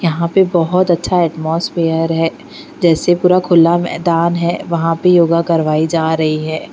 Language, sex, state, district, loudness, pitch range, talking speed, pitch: Hindi, female, Bihar, Patna, -14 LUFS, 165-175 Hz, 160 wpm, 170 Hz